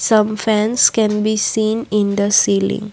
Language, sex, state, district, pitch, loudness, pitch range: English, female, Assam, Kamrup Metropolitan, 215 Hz, -15 LUFS, 210-220 Hz